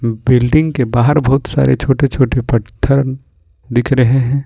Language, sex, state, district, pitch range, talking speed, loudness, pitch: Hindi, male, Jharkhand, Ranchi, 120-135 Hz, 150 wpm, -14 LUFS, 130 Hz